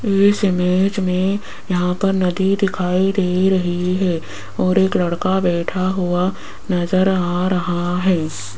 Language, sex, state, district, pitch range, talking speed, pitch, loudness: Hindi, female, Rajasthan, Jaipur, 180-190 Hz, 135 wpm, 185 Hz, -18 LUFS